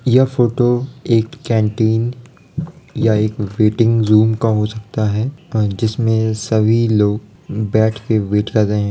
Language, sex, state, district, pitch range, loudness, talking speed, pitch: Hindi, male, Uttar Pradesh, Varanasi, 110-120 Hz, -16 LUFS, 150 wpm, 110 Hz